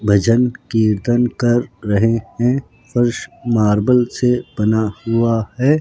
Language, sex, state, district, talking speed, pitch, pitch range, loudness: Hindi, male, Rajasthan, Jaipur, 115 wpm, 115 Hz, 110-125 Hz, -17 LUFS